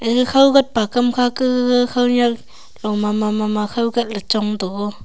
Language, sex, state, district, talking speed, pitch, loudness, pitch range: Wancho, female, Arunachal Pradesh, Longding, 180 wpm, 235 Hz, -17 LUFS, 210-245 Hz